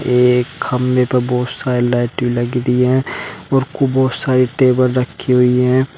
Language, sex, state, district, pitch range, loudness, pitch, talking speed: Hindi, male, Uttar Pradesh, Shamli, 125-130 Hz, -15 LUFS, 125 Hz, 180 wpm